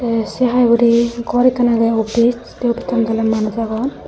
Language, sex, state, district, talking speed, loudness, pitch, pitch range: Chakma, female, Tripura, Unakoti, 190 wpm, -16 LUFS, 235 Hz, 225-245 Hz